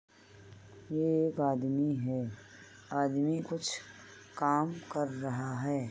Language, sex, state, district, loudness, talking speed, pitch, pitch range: Hindi, female, Uttar Pradesh, Etah, -33 LUFS, 100 wpm, 140 Hz, 125-150 Hz